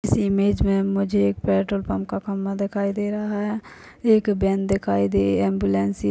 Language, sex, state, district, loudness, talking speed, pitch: Hindi, female, Chhattisgarh, Sarguja, -22 LUFS, 175 wpm, 195 Hz